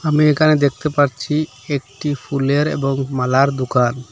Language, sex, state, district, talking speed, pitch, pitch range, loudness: Bengali, male, Assam, Hailakandi, 130 wpm, 140 Hz, 130-150 Hz, -18 LUFS